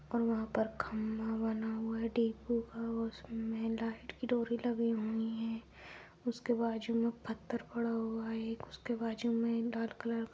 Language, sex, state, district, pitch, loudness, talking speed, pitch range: Hindi, female, Bihar, Madhepura, 230 Hz, -37 LUFS, 175 wpm, 225-235 Hz